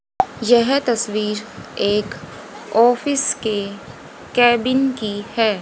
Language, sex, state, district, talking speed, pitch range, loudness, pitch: Hindi, female, Haryana, Jhajjar, 85 wpm, 210-245 Hz, -18 LUFS, 230 Hz